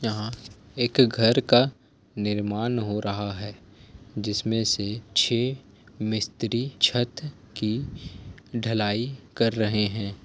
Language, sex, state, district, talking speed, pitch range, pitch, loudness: Hindi, male, Jharkhand, Jamtara, 105 wpm, 105-120 Hz, 110 Hz, -25 LUFS